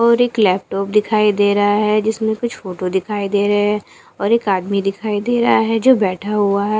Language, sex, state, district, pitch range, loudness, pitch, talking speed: Hindi, female, Bihar, Katihar, 200-220 Hz, -17 LUFS, 210 Hz, 220 wpm